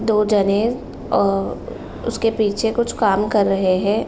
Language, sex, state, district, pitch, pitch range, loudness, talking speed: Hindi, female, Uttar Pradesh, Gorakhpur, 210 Hz, 200-225 Hz, -19 LUFS, 145 wpm